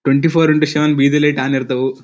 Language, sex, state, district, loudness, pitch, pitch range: Kannada, male, Karnataka, Dharwad, -14 LUFS, 145 Hz, 135-150 Hz